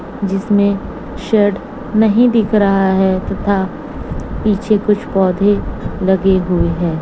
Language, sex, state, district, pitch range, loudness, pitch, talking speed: Hindi, female, Chhattisgarh, Raipur, 190-210 Hz, -15 LUFS, 200 Hz, 110 wpm